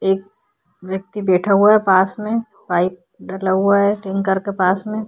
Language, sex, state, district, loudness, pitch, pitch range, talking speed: Hindi, female, Uttar Pradesh, Budaun, -17 LUFS, 195 Hz, 185-205 Hz, 175 wpm